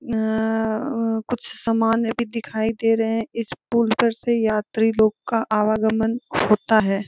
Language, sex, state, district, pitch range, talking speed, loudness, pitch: Hindi, female, Jharkhand, Sahebganj, 220-230 Hz, 150 wpm, -21 LUFS, 225 Hz